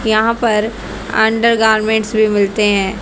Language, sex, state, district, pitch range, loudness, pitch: Hindi, female, Haryana, Rohtak, 210-220 Hz, -14 LUFS, 220 Hz